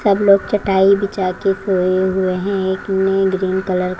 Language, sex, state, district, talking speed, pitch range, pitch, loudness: Hindi, female, Haryana, Jhajjar, 195 wpm, 185-195 Hz, 190 Hz, -16 LUFS